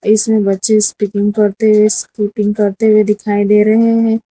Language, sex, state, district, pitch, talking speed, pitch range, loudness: Hindi, female, Gujarat, Valsad, 210 Hz, 165 wpm, 205-220 Hz, -12 LUFS